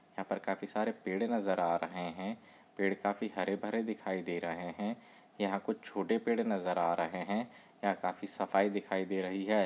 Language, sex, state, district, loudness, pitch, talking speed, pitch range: Hindi, male, Maharashtra, Chandrapur, -35 LUFS, 95 Hz, 195 wpm, 90-100 Hz